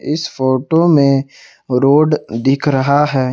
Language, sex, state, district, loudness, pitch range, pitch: Hindi, male, Assam, Kamrup Metropolitan, -14 LUFS, 130-150 Hz, 140 Hz